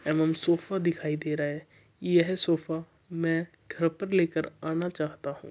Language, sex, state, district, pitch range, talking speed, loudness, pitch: Marwari, male, Rajasthan, Churu, 155-170 Hz, 165 wpm, -29 LUFS, 165 Hz